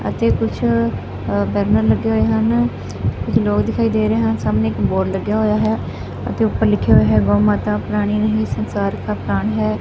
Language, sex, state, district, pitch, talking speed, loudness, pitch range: Punjabi, female, Punjab, Fazilka, 105 Hz, 190 wpm, -18 LUFS, 100-110 Hz